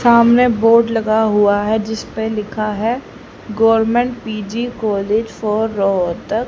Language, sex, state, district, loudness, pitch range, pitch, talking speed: Hindi, female, Haryana, Rohtak, -16 LUFS, 210-230 Hz, 220 Hz, 130 wpm